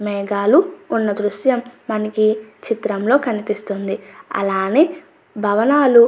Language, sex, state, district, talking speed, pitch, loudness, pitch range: Telugu, female, Andhra Pradesh, Anantapur, 90 wpm, 215 Hz, -18 LUFS, 205-260 Hz